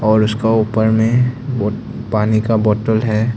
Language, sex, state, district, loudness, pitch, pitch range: Hindi, male, Arunachal Pradesh, Longding, -16 LUFS, 110 Hz, 110-115 Hz